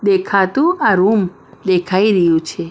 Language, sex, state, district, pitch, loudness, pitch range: Gujarati, female, Maharashtra, Mumbai Suburban, 190 Hz, -15 LUFS, 180-200 Hz